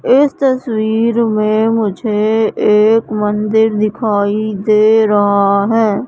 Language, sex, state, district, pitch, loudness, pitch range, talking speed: Hindi, female, Madhya Pradesh, Katni, 215 Hz, -13 LUFS, 210-225 Hz, 100 wpm